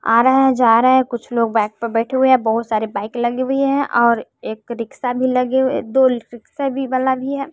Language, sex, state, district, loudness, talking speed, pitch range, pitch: Hindi, male, Bihar, West Champaran, -17 LUFS, 240 wpm, 230-265 Hz, 250 Hz